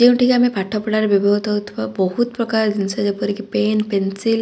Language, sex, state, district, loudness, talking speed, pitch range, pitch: Odia, female, Odisha, Khordha, -18 LUFS, 190 wpm, 200-225 Hz, 210 Hz